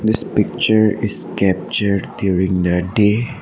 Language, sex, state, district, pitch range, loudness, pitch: English, male, Assam, Sonitpur, 95-110 Hz, -17 LUFS, 100 Hz